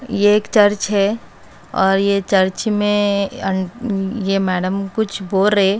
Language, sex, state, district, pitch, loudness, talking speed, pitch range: Hindi, female, Haryana, Charkhi Dadri, 200 Hz, -17 LUFS, 135 wpm, 195-210 Hz